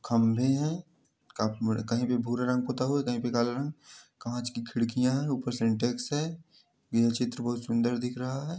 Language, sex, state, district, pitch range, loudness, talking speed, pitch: Hindi, male, Bihar, Samastipur, 115-135 Hz, -30 LUFS, 205 wpm, 125 Hz